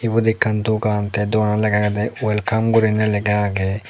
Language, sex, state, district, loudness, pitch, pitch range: Chakma, male, Tripura, Unakoti, -18 LUFS, 105 Hz, 105-110 Hz